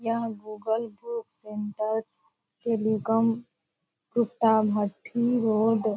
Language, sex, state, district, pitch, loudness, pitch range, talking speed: Hindi, female, Bihar, Purnia, 220 Hz, -27 LUFS, 210-230 Hz, 90 wpm